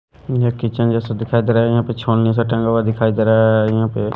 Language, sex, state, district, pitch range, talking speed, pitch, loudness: Hindi, male, Haryana, Rohtak, 110-115 Hz, 275 wpm, 115 Hz, -17 LUFS